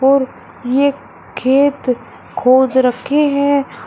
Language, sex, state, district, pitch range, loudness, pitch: Hindi, male, Uttar Pradesh, Shamli, 255-280 Hz, -15 LUFS, 270 Hz